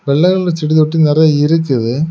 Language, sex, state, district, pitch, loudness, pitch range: Tamil, male, Tamil Nadu, Kanyakumari, 155 Hz, -12 LUFS, 145-160 Hz